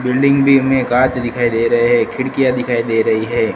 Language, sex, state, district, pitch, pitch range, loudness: Hindi, male, Gujarat, Gandhinagar, 125 Hz, 120-130 Hz, -14 LUFS